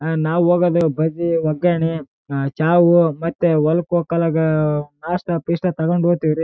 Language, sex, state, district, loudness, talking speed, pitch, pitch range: Kannada, male, Karnataka, Raichur, -18 LUFS, 65 wpm, 165 Hz, 155-175 Hz